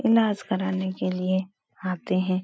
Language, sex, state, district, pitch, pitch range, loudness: Hindi, female, Uttar Pradesh, Etah, 190 Hz, 185-205 Hz, -26 LUFS